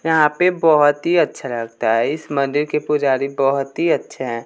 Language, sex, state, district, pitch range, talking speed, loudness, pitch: Hindi, male, Bihar, West Champaran, 130-155 Hz, 200 wpm, -18 LUFS, 145 Hz